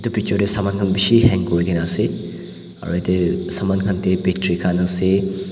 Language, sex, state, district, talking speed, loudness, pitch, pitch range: Nagamese, male, Nagaland, Dimapur, 185 wpm, -19 LUFS, 95 Hz, 90-100 Hz